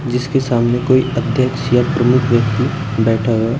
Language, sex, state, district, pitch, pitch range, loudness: Hindi, male, Uttar Pradesh, Shamli, 125 Hz, 120-130 Hz, -15 LUFS